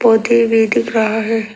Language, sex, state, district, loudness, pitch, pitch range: Hindi, female, Arunachal Pradesh, Lower Dibang Valley, -14 LUFS, 225 Hz, 220-230 Hz